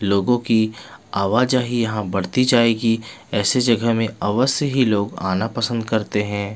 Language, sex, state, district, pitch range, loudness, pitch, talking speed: Hindi, male, Bihar, Patna, 105-120 Hz, -19 LUFS, 115 Hz, 165 wpm